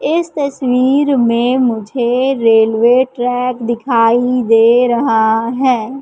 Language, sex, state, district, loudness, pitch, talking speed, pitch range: Hindi, female, Madhya Pradesh, Katni, -13 LUFS, 245 Hz, 100 wpm, 230-260 Hz